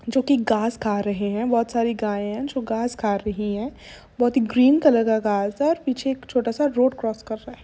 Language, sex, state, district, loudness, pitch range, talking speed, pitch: Hindi, female, Uttar Pradesh, Jalaun, -22 LUFS, 210-260 Hz, 250 wpm, 230 Hz